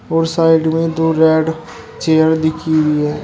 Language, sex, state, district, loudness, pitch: Hindi, male, Uttar Pradesh, Shamli, -14 LUFS, 160 Hz